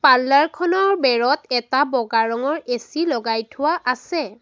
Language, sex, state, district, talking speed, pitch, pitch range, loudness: Assamese, female, Assam, Sonitpur, 135 wpm, 260 Hz, 240-310 Hz, -19 LUFS